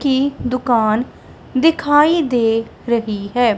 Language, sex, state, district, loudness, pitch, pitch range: Hindi, female, Punjab, Kapurthala, -17 LUFS, 245 Hz, 225-285 Hz